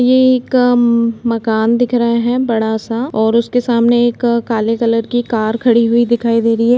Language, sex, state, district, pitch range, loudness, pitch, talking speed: Hindi, female, Uttar Pradesh, Jalaun, 230-245 Hz, -14 LUFS, 235 Hz, 205 wpm